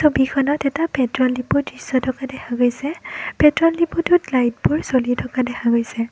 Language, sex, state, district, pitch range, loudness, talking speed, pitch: Assamese, female, Assam, Kamrup Metropolitan, 245-300 Hz, -19 LUFS, 125 wpm, 265 Hz